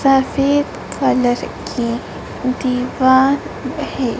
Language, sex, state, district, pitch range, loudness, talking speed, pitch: Hindi, female, Madhya Pradesh, Dhar, 250-275 Hz, -17 LUFS, 70 wpm, 260 Hz